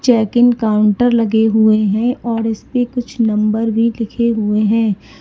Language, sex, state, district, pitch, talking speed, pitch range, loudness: Hindi, female, Uttar Pradesh, Lalitpur, 225 Hz, 150 wpm, 215-235 Hz, -15 LUFS